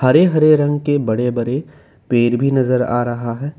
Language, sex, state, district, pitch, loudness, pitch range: Hindi, male, Assam, Kamrup Metropolitan, 130 Hz, -16 LUFS, 120-145 Hz